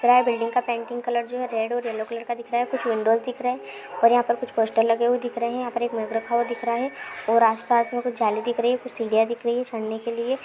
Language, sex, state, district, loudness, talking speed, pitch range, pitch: Hindi, female, Uttarakhand, Tehri Garhwal, -24 LUFS, 305 wpm, 225-245 Hz, 235 Hz